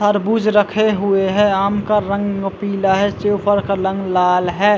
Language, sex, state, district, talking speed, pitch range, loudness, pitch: Hindi, male, Chhattisgarh, Bilaspur, 175 wpm, 195-205 Hz, -16 LUFS, 200 Hz